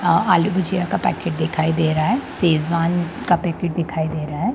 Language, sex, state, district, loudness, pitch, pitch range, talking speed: Hindi, female, Bihar, Sitamarhi, -20 LUFS, 170 Hz, 160-180 Hz, 210 wpm